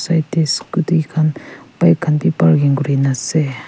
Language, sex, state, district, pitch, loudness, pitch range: Nagamese, female, Nagaland, Kohima, 155 Hz, -16 LUFS, 140-165 Hz